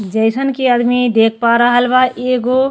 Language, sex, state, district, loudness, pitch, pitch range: Bhojpuri, female, Uttar Pradesh, Deoria, -13 LUFS, 245 Hz, 235-255 Hz